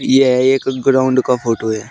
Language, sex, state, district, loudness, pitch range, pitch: Hindi, male, Uttar Pradesh, Shamli, -14 LUFS, 115-135 Hz, 130 Hz